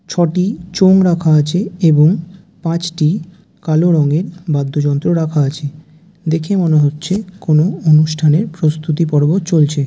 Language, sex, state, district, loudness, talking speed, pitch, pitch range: Bengali, male, West Bengal, Jalpaiguri, -14 LUFS, 115 wpm, 165 Hz, 155-180 Hz